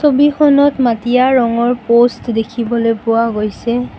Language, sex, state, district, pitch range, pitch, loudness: Assamese, female, Assam, Kamrup Metropolitan, 230-255 Hz, 240 Hz, -13 LUFS